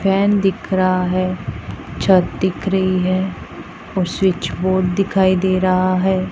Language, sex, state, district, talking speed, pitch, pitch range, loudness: Hindi, female, Punjab, Pathankot, 140 wpm, 185 Hz, 185-190 Hz, -17 LUFS